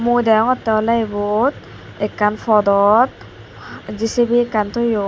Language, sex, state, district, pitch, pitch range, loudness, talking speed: Chakma, female, Tripura, Dhalai, 220 Hz, 210-240 Hz, -17 LUFS, 105 wpm